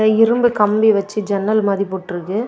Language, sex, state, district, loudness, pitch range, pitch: Tamil, female, Tamil Nadu, Kanyakumari, -16 LUFS, 200-220 Hz, 210 Hz